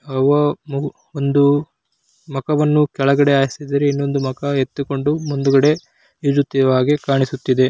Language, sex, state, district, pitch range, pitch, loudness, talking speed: Kannada, male, Karnataka, Chamarajanagar, 135-145 Hz, 140 Hz, -18 LUFS, 85 wpm